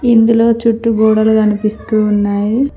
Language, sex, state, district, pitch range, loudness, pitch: Telugu, female, Telangana, Mahabubabad, 215-230 Hz, -12 LUFS, 220 Hz